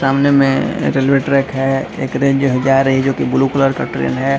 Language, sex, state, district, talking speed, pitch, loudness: Hindi, male, Uttar Pradesh, Jalaun, 205 wpm, 135 Hz, -15 LUFS